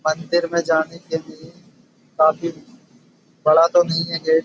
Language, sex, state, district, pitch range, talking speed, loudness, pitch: Hindi, male, Uttar Pradesh, Budaun, 160-170 Hz, 160 wpm, -19 LUFS, 165 Hz